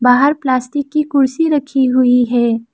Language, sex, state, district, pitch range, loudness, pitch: Hindi, female, Arunachal Pradesh, Lower Dibang Valley, 245-285 Hz, -14 LUFS, 260 Hz